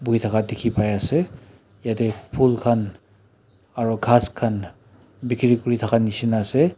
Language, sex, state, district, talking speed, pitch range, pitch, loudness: Nagamese, male, Nagaland, Dimapur, 140 wpm, 105-120 Hz, 115 Hz, -21 LUFS